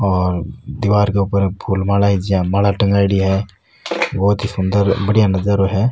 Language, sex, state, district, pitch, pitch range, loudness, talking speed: Rajasthani, male, Rajasthan, Nagaur, 100 Hz, 95-100 Hz, -16 LUFS, 170 wpm